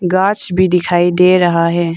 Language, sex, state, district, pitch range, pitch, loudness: Hindi, female, Arunachal Pradesh, Longding, 175-185 Hz, 180 Hz, -12 LUFS